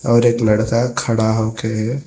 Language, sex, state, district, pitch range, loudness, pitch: Hindi, male, Telangana, Hyderabad, 110-120 Hz, -17 LUFS, 115 Hz